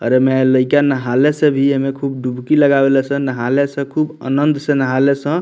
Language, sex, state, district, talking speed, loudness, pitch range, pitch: Bhojpuri, male, Bihar, Muzaffarpur, 175 wpm, -15 LUFS, 130-145 Hz, 140 Hz